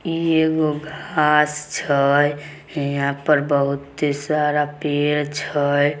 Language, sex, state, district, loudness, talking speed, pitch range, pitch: Magahi, female, Bihar, Samastipur, -20 LUFS, 100 wpm, 145-150 Hz, 150 Hz